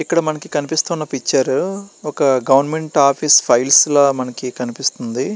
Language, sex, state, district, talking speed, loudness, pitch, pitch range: Telugu, male, Andhra Pradesh, Srikakulam, 135 wpm, -16 LUFS, 145 Hz, 135-160 Hz